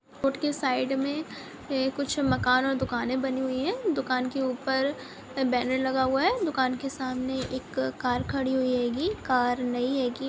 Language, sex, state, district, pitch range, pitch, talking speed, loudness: Hindi, female, Bihar, Sitamarhi, 255-275 Hz, 265 Hz, 170 wpm, -28 LUFS